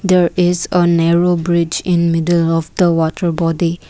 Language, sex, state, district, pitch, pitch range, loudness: English, female, Assam, Kamrup Metropolitan, 170 Hz, 165-175 Hz, -15 LUFS